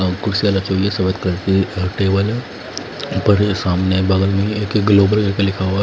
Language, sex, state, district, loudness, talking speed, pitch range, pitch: Hindi, male, Punjab, Fazilka, -17 LUFS, 225 wpm, 95-100 Hz, 95 Hz